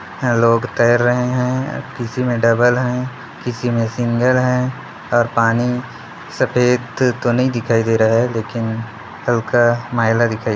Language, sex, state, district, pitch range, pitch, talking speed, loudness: Hindi, male, Chhattisgarh, Bilaspur, 115-125 Hz, 120 Hz, 150 wpm, -17 LUFS